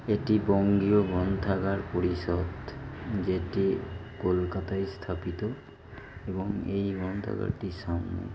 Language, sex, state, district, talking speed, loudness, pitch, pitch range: Bengali, male, West Bengal, Kolkata, 80 wpm, -30 LUFS, 95 Hz, 90-100 Hz